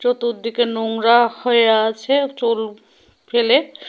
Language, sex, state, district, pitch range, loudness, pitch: Bengali, female, Tripura, West Tripura, 225-245 Hz, -17 LUFS, 235 Hz